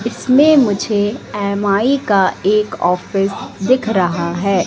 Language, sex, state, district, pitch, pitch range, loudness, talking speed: Hindi, female, Madhya Pradesh, Katni, 205 Hz, 195-225 Hz, -15 LUFS, 115 wpm